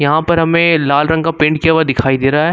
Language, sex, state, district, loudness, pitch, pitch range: Hindi, male, Uttar Pradesh, Lucknow, -12 LUFS, 155 Hz, 145-165 Hz